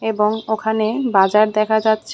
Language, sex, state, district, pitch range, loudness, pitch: Bengali, female, Tripura, West Tripura, 215-220 Hz, -17 LUFS, 220 Hz